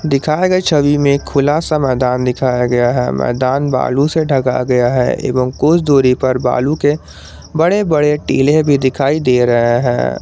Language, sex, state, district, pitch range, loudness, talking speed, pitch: Hindi, male, Jharkhand, Garhwa, 125-150 Hz, -14 LUFS, 175 wpm, 135 Hz